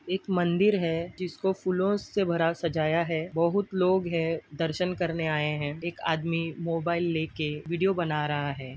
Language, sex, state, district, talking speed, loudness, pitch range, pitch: Hindi, male, Maharashtra, Nagpur, 155 wpm, -28 LUFS, 160-180 Hz, 170 Hz